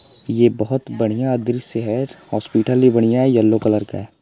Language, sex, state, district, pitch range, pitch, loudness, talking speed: Hindi, male, Bihar, Gopalganj, 110-130 Hz, 115 Hz, -18 LUFS, 185 wpm